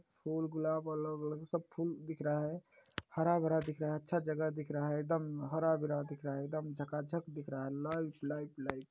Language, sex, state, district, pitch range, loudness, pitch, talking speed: Hindi, male, Chhattisgarh, Balrampur, 150-160 Hz, -38 LUFS, 155 Hz, 215 wpm